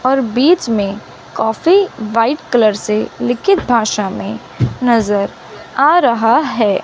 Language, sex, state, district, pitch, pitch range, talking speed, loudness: Hindi, female, Chandigarh, Chandigarh, 230 Hz, 215-250 Hz, 125 wpm, -14 LUFS